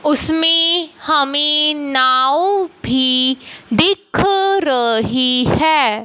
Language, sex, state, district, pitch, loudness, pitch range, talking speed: Hindi, female, Punjab, Fazilka, 300 Hz, -13 LUFS, 260-345 Hz, 70 wpm